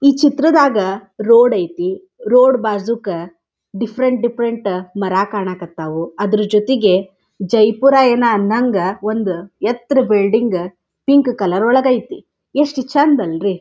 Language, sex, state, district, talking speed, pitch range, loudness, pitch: Kannada, female, Karnataka, Dharwad, 110 wpm, 195-260 Hz, -15 LUFS, 220 Hz